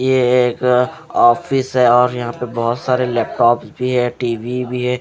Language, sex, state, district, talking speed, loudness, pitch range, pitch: Hindi, male, Punjab, Fazilka, 180 wpm, -16 LUFS, 120-125 Hz, 125 Hz